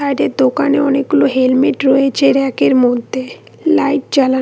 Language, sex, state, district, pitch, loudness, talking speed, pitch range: Bengali, female, West Bengal, Cooch Behar, 265 Hz, -13 LUFS, 135 wpm, 255-275 Hz